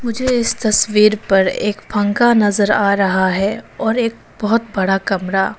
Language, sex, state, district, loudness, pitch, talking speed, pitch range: Hindi, female, Arunachal Pradesh, Papum Pare, -16 LUFS, 210 Hz, 160 wpm, 195-230 Hz